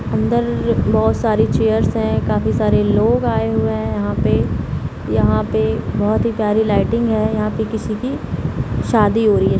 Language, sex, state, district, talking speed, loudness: Hindi, female, Bihar, Samastipur, 175 wpm, -17 LUFS